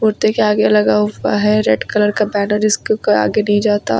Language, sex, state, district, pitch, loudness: Hindi, female, Uttar Pradesh, Lucknow, 205 Hz, -15 LUFS